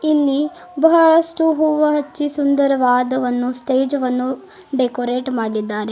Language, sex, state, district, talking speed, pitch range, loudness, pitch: Kannada, female, Karnataka, Bidar, 90 wpm, 250-310 Hz, -17 LUFS, 275 Hz